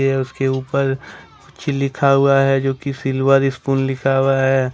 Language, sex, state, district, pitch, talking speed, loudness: Hindi, male, Jharkhand, Ranchi, 135 Hz, 165 wpm, -18 LUFS